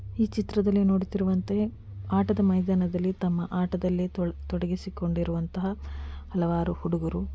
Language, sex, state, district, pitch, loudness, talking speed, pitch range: Kannada, female, Karnataka, Dakshina Kannada, 180 Hz, -28 LUFS, 80 wpm, 170-190 Hz